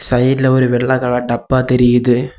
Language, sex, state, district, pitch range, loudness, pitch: Tamil, male, Tamil Nadu, Kanyakumari, 125-130 Hz, -14 LUFS, 125 Hz